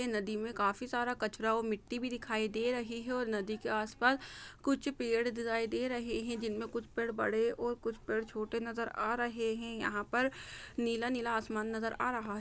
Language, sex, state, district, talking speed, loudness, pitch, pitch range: Hindi, female, Uttar Pradesh, Jyotiba Phule Nagar, 210 wpm, -36 LUFS, 230 Hz, 220-240 Hz